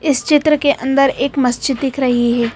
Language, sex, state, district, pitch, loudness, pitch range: Hindi, female, Madhya Pradesh, Bhopal, 270 Hz, -15 LUFS, 250-285 Hz